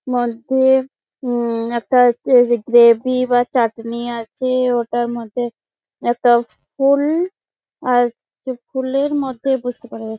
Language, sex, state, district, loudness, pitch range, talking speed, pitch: Bengali, female, West Bengal, Jalpaiguri, -17 LUFS, 235-260 Hz, 110 wpm, 245 Hz